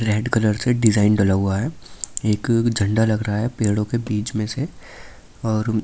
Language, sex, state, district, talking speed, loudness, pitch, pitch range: Hindi, male, Delhi, New Delhi, 185 wpm, -21 LUFS, 110 Hz, 105-115 Hz